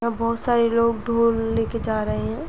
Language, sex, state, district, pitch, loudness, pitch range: Hindi, female, Uttar Pradesh, Jyotiba Phule Nagar, 230 Hz, -22 LUFS, 225-230 Hz